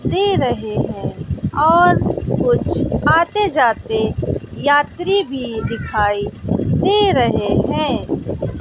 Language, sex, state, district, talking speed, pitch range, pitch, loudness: Hindi, female, Bihar, West Champaran, 90 wpm, 270-395 Hz, 330 Hz, -17 LUFS